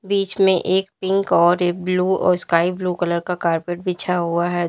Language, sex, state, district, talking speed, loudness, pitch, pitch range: Hindi, female, Uttar Pradesh, Lalitpur, 190 wpm, -19 LUFS, 180 Hz, 175-190 Hz